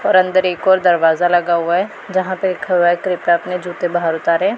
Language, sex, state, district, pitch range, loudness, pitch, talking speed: Hindi, female, Punjab, Pathankot, 170-185 Hz, -16 LUFS, 175 Hz, 235 wpm